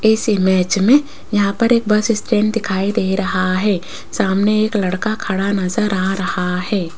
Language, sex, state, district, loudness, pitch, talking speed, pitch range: Hindi, female, Rajasthan, Jaipur, -17 LUFS, 200 Hz, 170 wpm, 190-215 Hz